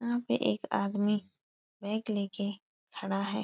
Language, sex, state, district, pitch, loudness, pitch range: Hindi, female, Uttar Pradesh, Etah, 205 Hz, -33 LUFS, 200-215 Hz